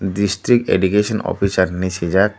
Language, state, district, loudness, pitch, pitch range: Kokborok, Tripura, Dhalai, -17 LUFS, 100 Hz, 95-105 Hz